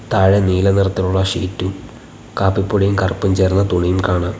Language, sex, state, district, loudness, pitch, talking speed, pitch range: Malayalam, male, Kerala, Kollam, -16 LUFS, 95 Hz, 125 wpm, 95-100 Hz